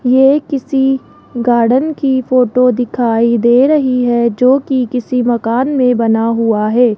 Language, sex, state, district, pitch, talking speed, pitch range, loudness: Hindi, male, Rajasthan, Jaipur, 250 Hz, 145 wpm, 235-265 Hz, -12 LUFS